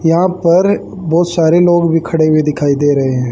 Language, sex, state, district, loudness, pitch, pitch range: Hindi, female, Haryana, Charkhi Dadri, -12 LUFS, 165 Hz, 150-175 Hz